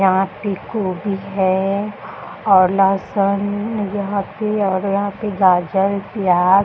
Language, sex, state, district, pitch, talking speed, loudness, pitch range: Hindi, female, Bihar, Bhagalpur, 195 Hz, 125 wpm, -18 LUFS, 190-205 Hz